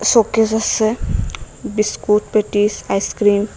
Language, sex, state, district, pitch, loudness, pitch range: Bengali, female, Assam, Hailakandi, 215 Hz, -17 LUFS, 205-220 Hz